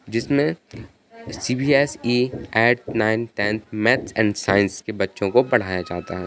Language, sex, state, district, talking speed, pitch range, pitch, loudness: Hindi, male, Bihar, Jahanabad, 155 wpm, 105-130 Hz, 115 Hz, -21 LUFS